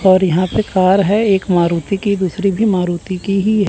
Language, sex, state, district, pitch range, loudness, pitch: Hindi, male, Chandigarh, Chandigarh, 185-200 Hz, -15 LUFS, 190 Hz